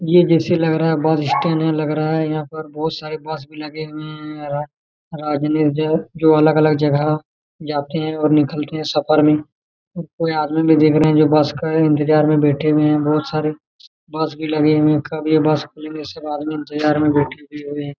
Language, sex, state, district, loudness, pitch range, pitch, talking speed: Hindi, male, Jharkhand, Jamtara, -17 LUFS, 150-155 Hz, 155 Hz, 210 wpm